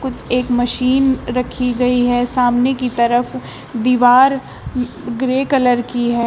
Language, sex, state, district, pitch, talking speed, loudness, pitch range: Hindi, female, Uttar Pradesh, Shamli, 250 Hz, 125 wpm, -16 LUFS, 245-255 Hz